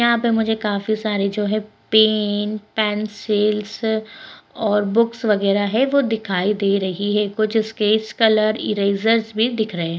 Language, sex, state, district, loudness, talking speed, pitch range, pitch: Hindi, female, Bihar, Begusarai, -19 LUFS, 155 wpm, 205-220 Hz, 215 Hz